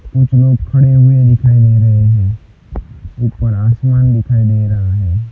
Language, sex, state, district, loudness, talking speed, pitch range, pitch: Hindi, male, Gujarat, Gandhinagar, -11 LUFS, 155 wpm, 105-125 Hz, 115 Hz